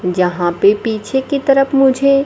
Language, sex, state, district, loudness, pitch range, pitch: Hindi, female, Bihar, Kaimur, -14 LUFS, 195-275 Hz, 260 Hz